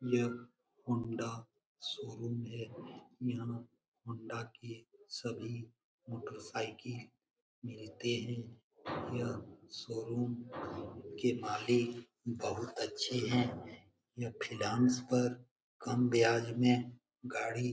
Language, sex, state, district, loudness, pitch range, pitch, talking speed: Hindi, male, Bihar, Jamui, -37 LUFS, 115-125 Hz, 120 Hz, 90 wpm